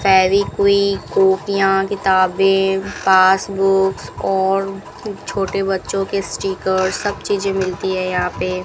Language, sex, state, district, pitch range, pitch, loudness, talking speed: Hindi, female, Rajasthan, Bikaner, 190-195 Hz, 195 Hz, -17 LUFS, 105 wpm